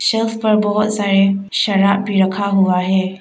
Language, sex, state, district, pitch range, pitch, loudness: Hindi, female, Arunachal Pradesh, Papum Pare, 195-210 Hz, 200 Hz, -16 LUFS